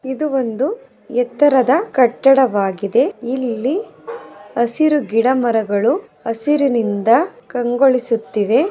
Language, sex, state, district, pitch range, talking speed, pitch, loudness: Kannada, female, Karnataka, Mysore, 230-275 Hz, 60 wpm, 250 Hz, -17 LUFS